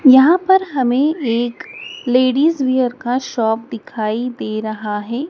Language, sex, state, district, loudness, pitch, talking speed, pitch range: Hindi, female, Madhya Pradesh, Dhar, -17 LUFS, 255 Hz, 135 wpm, 230-275 Hz